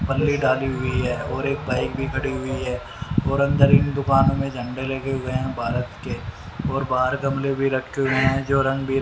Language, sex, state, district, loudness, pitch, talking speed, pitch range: Hindi, male, Haryana, Rohtak, -22 LUFS, 135 Hz, 205 wpm, 130-135 Hz